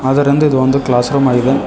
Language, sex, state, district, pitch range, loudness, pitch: Kannada, male, Karnataka, Koppal, 130-140 Hz, -12 LUFS, 135 Hz